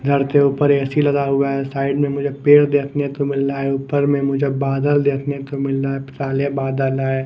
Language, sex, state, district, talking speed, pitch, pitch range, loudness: Hindi, male, Maharashtra, Mumbai Suburban, 215 wpm, 140 Hz, 135-140 Hz, -18 LUFS